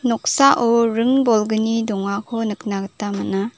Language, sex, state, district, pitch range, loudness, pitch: Garo, female, Meghalaya, South Garo Hills, 205-235 Hz, -19 LUFS, 225 Hz